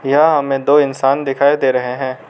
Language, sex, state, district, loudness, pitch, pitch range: Hindi, male, Arunachal Pradesh, Lower Dibang Valley, -15 LUFS, 135 Hz, 130-140 Hz